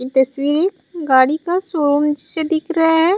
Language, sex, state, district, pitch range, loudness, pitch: Chhattisgarhi, female, Chhattisgarh, Raigarh, 285-340 Hz, -17 LUFS, 315 Hz